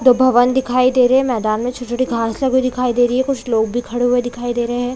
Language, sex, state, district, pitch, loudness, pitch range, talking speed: Hindi, female, Chhattisgarh, Bilaspur, 245 Hz, -16 LUFS, 245-255 Hz, 300 wpm